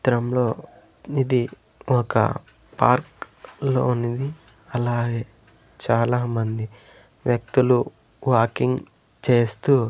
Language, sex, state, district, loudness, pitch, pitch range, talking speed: Telugu, male, Andhra Pradesh, Sri Satya Sai, -23 LUFS, 120 Hz, 115-130 Hz, 60 wpm